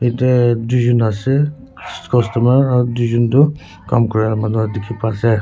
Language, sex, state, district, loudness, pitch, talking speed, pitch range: Nagamese, male, Nagaland, Kohima, -16 LUFS, 120 Hz, 145 wpm, 110-125 Hz